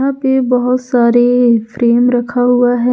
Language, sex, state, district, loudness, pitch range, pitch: Hindi, female, Jharkhand, Ranchi, -12 LUFS, 240-250 Hz, 245 Hz